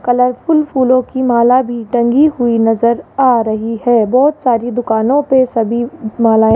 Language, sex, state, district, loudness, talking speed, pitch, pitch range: Hindi, female, Rajasthan, Jaipur, -13 LUFS, 165 wpm, 240 Hz, 230-260 Hz